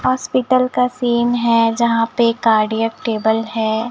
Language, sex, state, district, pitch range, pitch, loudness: Hindi, male, Chhattisgarh, Raipur, 225-250 Hz, 230 Hz, -16 LUFS